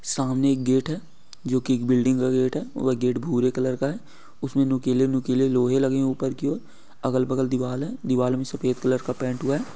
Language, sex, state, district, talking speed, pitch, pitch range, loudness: Hindi, male, Uttar Pradesh, Gorakhpur, 225 wpm, 130 Hz, 130-135 Hz, -24 LUFS